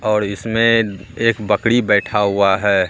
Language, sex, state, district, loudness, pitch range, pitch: Hindi, male, Bihar, Katihar, -16 LUFS, 100-115 Hz, 105 Hz